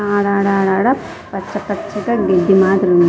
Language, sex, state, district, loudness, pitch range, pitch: Telugu, female, Andhra Pradesh, Sri Satya Sai, -15 LUFS, 190-205 Hz, 200 Hz